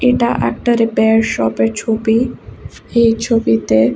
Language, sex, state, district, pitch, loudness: Bengali, female, West Bengal, Kolkata, 225 Hz, -15 LUFS